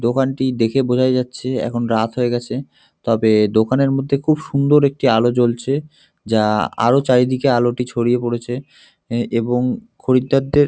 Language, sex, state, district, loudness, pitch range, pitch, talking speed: Bengali, male, West Bengal, North 24 Parganas, -18 LUFS, 120-135 Hz, 125 Hz, 140 wpm